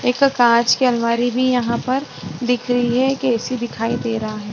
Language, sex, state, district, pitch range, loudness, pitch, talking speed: Hindi, female, Chhattisgarh, Rajnandgaon, 235-255 Hz, -18 LUFS, 245 Hz, 200 wpm